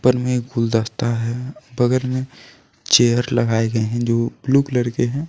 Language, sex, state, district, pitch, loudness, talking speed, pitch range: Hindi, male, Jharkhand, Deoghar, 120 Hz, -19 LUFS, 170 wpm, 115-130 Hz